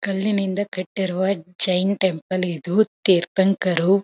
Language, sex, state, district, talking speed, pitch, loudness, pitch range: Kannada, female, Karnataka, Belgaum, 90 wpm, 190 Hz, -21 LUFS, 180-195 Hz